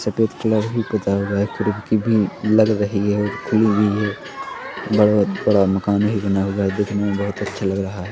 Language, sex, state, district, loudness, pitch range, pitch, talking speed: Hindi, male, Chhattisgarh, Rajnandgaon, -19 LUFS, 100-105 Hz, 105 Hz, 220 wpm